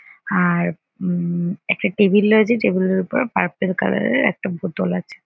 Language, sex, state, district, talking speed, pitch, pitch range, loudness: Bengali, female, West Bengal, North 24 Parganas, 150 wpm, 185 Hz, 175-220 Hz, -19 LUFS